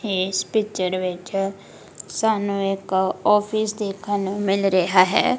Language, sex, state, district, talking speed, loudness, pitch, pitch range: Punjabi, female, Punjab, Kapurthala, 120 wpm, -22 LUFS, 195 Hz, 190-210 Hz